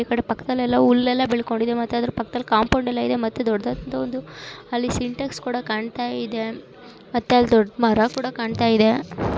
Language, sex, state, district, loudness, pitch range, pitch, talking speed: Kannada, female, Karnataka, Dharwad, -22 LUFS, 220-245 Hz, 235 Hz, 155 wpm